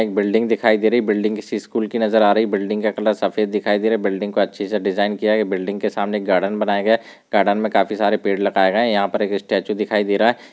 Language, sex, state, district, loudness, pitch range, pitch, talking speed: Hindi, male, Rajasthan, Churu, -19 LUFS, 100-110 Hz, 105 Hz, 310 wpm